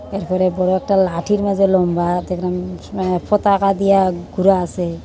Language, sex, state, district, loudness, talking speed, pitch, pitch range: Bengali, female, Tripura, Unakoti, -17 LUFS, 130 wpm, 185 Hz, 180-195 Hz